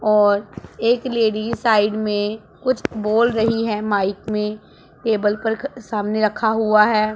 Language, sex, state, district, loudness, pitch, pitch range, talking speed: Hindi, female, Punjab, Pathankot, -20 LUFS, 215 Hz, 210-225 Hz, 140 wpm